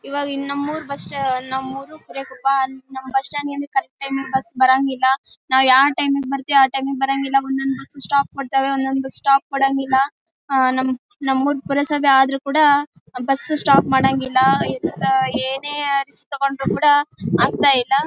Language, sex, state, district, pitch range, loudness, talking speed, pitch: Kannada, female, Karnataka, Bellary, 265-280 Hz, -18 LUFS, 170 wpm, 270 Hz